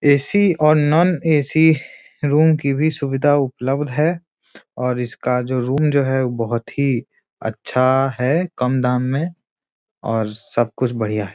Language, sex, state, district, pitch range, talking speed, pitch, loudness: Hindi, male, Bihar, Muzaffarpur, 125-155 Hz, 150 wpm, 140 Hz, -18 LUFS